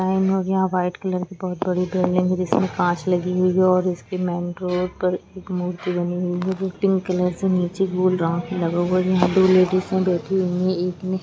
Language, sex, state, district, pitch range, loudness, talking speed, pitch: Hindi, female, Jharkhand, Jamtara, 180-185 Hz, -21 LUFS, 175 wpm, 185 Hz